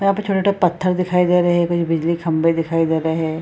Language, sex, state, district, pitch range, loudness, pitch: Hindi, female, Bihar, Purnia, 165-180 Hz, -18 LUFS, 170 Hz